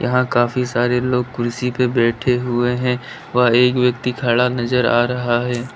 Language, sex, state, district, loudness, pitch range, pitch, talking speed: Hindi, male, Uttar Pradesh, Lalitpur, -18 LUFS, 120-125 Hz, 125 Hz, 175 wpm